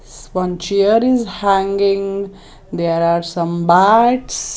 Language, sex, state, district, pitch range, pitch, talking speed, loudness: English, female, Maharashtra, Mumbai Suburban, 170-200 Hz, 195 Hz, 105 wpm, -15 LUFS